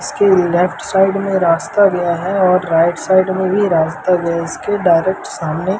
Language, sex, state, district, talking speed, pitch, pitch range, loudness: Hindi, male, Madhya Pradesh, Umaria, 195 wpm, 180 Hz, 170-190 Hz, -15 LUFS